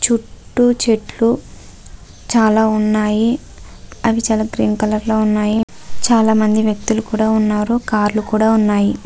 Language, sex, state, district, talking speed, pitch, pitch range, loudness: Telugu, female, Andhra Pradesh, Visakhapatnam, 125 wpm, 220 Hz, 215-230 Hz, -16 LUFS